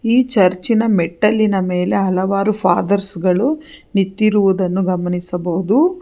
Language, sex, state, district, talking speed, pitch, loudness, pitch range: Kannada, female, Karnataka, Bangalore, 90 wpm, 195 Hz, -16 LUFS, 180-215 Hz